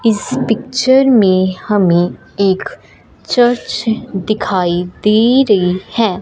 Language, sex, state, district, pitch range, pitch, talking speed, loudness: Hindi, female, Punjab, Fazilka, 185-240 Hz, 210 Hz, 95 wpm, -14 LUFS